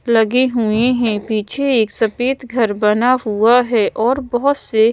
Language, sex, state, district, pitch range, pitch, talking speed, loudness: Hindi, female, Madhya Pradesh, Bhopal, 220-255 Hz, 235 Hz, 160 wpm, -16 LUFS